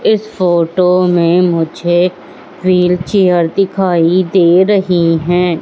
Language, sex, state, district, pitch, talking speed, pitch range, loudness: Hindi, female, Madhya Pradesh, Katni, 180 Hz, 105 wpm, 170-185 Hz, -12 LUFS